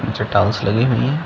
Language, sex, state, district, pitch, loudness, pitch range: Hindi, male, Chhattisgarh, Rajnandgaon, 115 Hz, -17 LUFS, 105-125 Hz